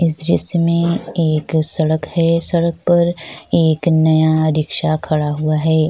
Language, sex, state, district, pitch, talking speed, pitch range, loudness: Hindi, female, Chhattisgarh, Sukma, 160 Hz, 155 wpm, 155-170 Hz, -16 LUFS